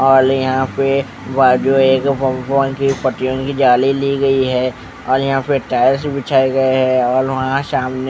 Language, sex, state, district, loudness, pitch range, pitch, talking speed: Hindi, male, Bihar, West Champaran, -15 LUFS, 130-135 Hz, 135 Hz, 125 wpm